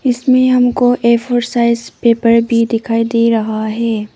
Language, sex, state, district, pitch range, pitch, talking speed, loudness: Hindi, female, Arunachal Pradesh, Papum Pare, 230-245 Hz, 235 Hz, 160 wpm, -13 LUFS